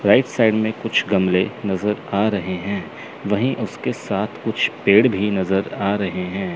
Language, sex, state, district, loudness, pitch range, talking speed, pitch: Hindi, male, Chandigarh, Chandigarh, -20 LUFS, 95-110 Hz, 175 wpm, 100 Hz